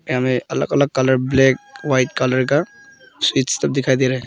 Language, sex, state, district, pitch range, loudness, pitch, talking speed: Hindi, female, Arunachal Pradesh, Papum Pare, 130-140 Hz, -18 LUFS, 130 Hz, 210 wpm